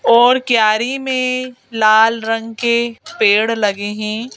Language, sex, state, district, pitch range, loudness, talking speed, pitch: Hindi, female, Madhya Pradesh, Bhopal, 220-255 Hz, -15 LUFS, 125 wpm, 230 Hz